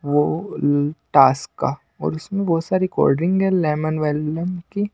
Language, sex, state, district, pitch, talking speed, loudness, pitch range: Hindi, male, Maharashtra, Washim, 160 Hz, 170 wpm, -20 LUFS, 150-185 Hz